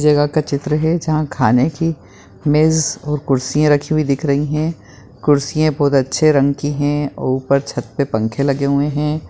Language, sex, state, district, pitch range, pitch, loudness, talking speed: Hindi, male, Bihar, Madhepura, 135-155 Hz, 145 Hz, -17 LUFS, 180 wpm